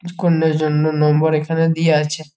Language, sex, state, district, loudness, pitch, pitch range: Bengali, male, West Bengal, Jhargram, -16 LUFS, 155 Hz, 155-165 Hz